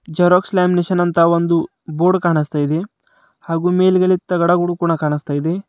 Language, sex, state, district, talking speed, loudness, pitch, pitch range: Kannada, male, Karnataka, Bidar, 135 wpm, -16 LUFS, 175 Hz, 165-180 Hz